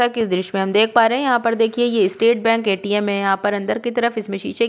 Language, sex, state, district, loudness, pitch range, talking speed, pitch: Hindi, female, Uttar Pradesh, Budaun, -18 LUFS, 200-235 Hz, 320 wpm, 225 Hz